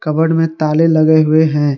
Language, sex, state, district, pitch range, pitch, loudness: Hindi, male, Jharkhand, Garhwa, 155-160 Hz, 155 Hz, -12 LUFS